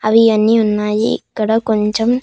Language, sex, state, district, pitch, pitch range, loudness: Telugu, female, Andhra Pradesh, Annamaya, 220 Hz, 215-225 Hz, -15 LUFS